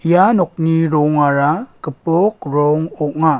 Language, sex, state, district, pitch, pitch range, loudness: Garo, male, Meghalaya, West Garo Hills, 160 Hz, 150-170 Hz, -15 LUFS